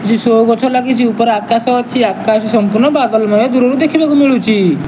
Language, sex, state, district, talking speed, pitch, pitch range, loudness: Odia, male, Odisha, Nuapada, 160 wpm, 230 Hz, 220-250 Hz, -12 LUFS